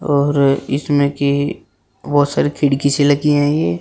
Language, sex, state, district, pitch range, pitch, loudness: Hindi, male, Uttar Pradesh, Shamli, 140-145 Hz, 145 Hz, -16 LUFS